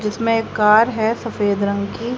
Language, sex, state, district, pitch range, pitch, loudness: Hindi, female, Haryana, Jhajjar, 205-230 Hz, 220 Hz, -18 LUFS